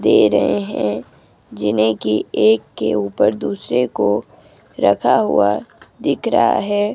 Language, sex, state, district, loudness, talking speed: Hindi, female, Himachal Pradesh, Shimla, -17 LUFS, 130 wpm